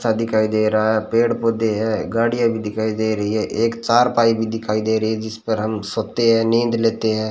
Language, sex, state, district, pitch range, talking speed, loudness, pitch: Hindi, male, Rajasthan, Bikaner, 110-115 Hz, 240 wpm, -19 LUFS, 110 Hz